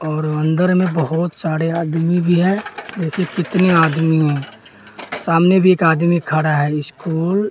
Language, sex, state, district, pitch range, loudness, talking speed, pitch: Hindi, male, Bihar, West Champaran, 155-180 Hz, -16 LUFS, 160 wpm, 165 Hz